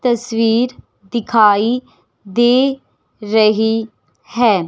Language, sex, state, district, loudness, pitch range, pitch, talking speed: Hindi, female, Himachal Pradesh, Shimla, -15 LUFS, 215-240 Hz, 225 Hz, 65 wpm